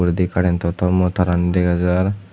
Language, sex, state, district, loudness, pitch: Chakma, male, Tripura, West Tripura, -18 LUFS, 90 Hz